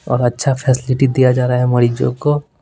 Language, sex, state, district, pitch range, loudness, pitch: Hindi, male, Bihar, Patna, 125-135 Hz, -15 LUFS, 125 Hz